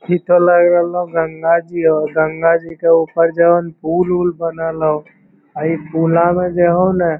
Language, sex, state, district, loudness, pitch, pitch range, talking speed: Magahi, male, Bihar, Lakhisarai, -15 LUFS, 170 Hz, 165-175 Hz, 200 wpm